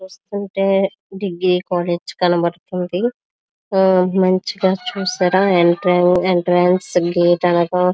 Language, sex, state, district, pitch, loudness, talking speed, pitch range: Telugu, female, Andhra Pradesh, Visakhapatnam, 180 Hz, -17 LUFS, 60 wpm, 175-190 Hz